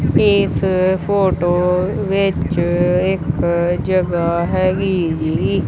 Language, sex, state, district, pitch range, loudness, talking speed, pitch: Punjabi, male, Punjab, Kapurthala, 170-190 Hz, -17 LUFS, 75 wpm, 180 Hz